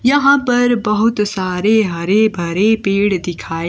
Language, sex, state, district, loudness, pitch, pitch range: Hindi, female, Himachal Pradesh, Shimla, -15 LUFS, 210 Hz, 185-225 Hz